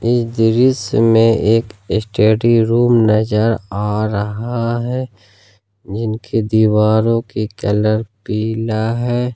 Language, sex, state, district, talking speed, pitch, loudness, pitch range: Hindi, male, Jharkhand, Ranchi, 100 wpm, 110 Hz, -16 LUFS, 105-115 Hz